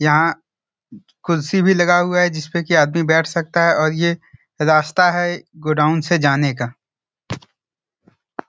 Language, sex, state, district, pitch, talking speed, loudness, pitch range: Hindi, male, Bihar, Jahanabad, 165 Hz, 140 wpm, -17 LUFS, 150-175 Hz